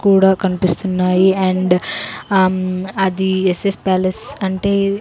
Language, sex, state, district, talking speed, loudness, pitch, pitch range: Telugu, female, Andhra Pradesh, Sri Satya Sai, 110 wpm, -16 LUFS, 190 Hz, 185-195 Hz